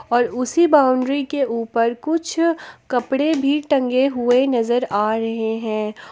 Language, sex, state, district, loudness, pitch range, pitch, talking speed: Hindi, female, Jharkhand, Palamu, -19 LUFS, 230-285 Hz, 255 Hz, 135 wpm